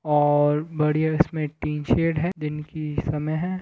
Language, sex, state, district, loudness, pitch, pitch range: Hindi, male, Chhattisgarh, Rajnandgaon, -24 LUFS, 150 Hz, 150-160 Hz